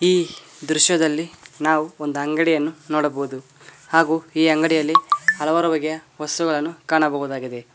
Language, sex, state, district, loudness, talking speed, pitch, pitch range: Kannada, male, Karnataka, Koppal, -20 LUFS, 100 wpm, 155 Hz, 150-165 Hz